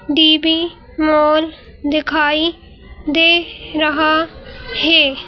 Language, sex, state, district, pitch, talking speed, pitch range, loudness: Hindi, female, Madhya Pradesh, Bhopal, 310 Hz, 70 wpm, 305-325 Hz, -14 LUFS